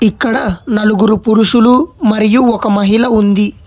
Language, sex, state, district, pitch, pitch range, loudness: Telugu, male, Telangana, Hyderabad, 220 Hz, 210-235 Hz, -11 LUFS